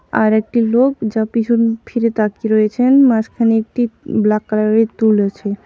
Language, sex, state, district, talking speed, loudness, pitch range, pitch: Bengali, female, West Bengal, Alipurduar, 150 wpm, -15 LUFS, 215-235 Hz, 225 Hz